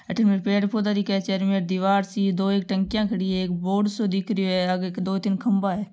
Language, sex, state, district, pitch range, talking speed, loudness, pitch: Marwari, female, Rajasthan, Nagaur, 190-205 Hz, 245 wpm, -24 LUFS, 195 Hz